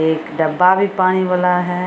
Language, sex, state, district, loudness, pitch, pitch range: Maithili, female, Bihar, Samastipur, -16 LUFS, 180 Hz, 160-185 Hz